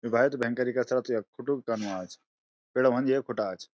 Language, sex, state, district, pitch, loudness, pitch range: Garhwali, male, Uttarakhand, Uttarkashi, 125 Hz, -29 LUFS, 115-130 Hz